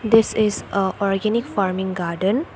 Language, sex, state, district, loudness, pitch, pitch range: English, female, Assam, Kamrup Metropolitan, -21 LUFS, 200 Hz, 190-220 Hz